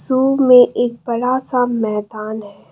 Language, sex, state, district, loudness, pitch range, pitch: Hindi, female, Assam, Kamrup Metropolitan, -15 LUFS, 220-255 Hz, 245 Hz